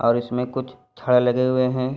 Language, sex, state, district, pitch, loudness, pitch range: Hindi, male, Uttar Pradesh, Varanasi, 125 Hz, -21 LUFS, 125-130 Hz